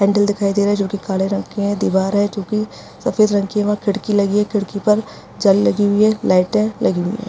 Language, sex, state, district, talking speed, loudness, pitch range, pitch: Hindi, female, Bihar, Madhepura, 270 wpm, -17 LUFS, 200-210 Hz, 205 Hz